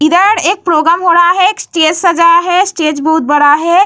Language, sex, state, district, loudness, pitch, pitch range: Hindi, female, Bihar, Vaishali, -9 LUFS, 345 Hz, 315-365 Hz